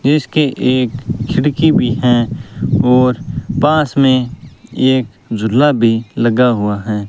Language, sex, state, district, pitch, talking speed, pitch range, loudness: Hindi, male, Rajasthan, Bikaner, 125 Hz, 120 wpm, 120-145 Hz, -14 LUFS